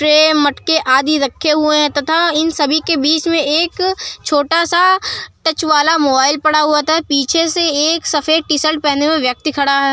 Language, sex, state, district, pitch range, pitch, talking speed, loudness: Hindi, female, Uttar Pradesh, Muzaffarnagar, 290-330 Hz, 310 Hz, 200 wpm, -13 LUFS